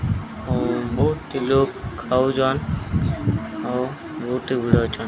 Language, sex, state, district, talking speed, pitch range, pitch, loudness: Odia, male, Odisha, Sambalpur, 85 wpm, 115-135 Hz, 125 Hz, -23 LUFS